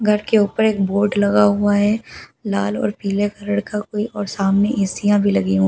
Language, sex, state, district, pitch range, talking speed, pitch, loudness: Hindi, female, Delhi, New Delhi, 195-210 Hz, 230 wpm, 205 Hz, -18 LUFS